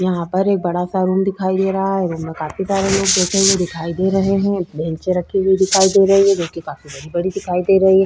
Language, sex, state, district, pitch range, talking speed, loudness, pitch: Hindi, female, Chhattisgarh, Korba, 175-195 Hz, 260 wpm, -17 LUFS, 190 Hz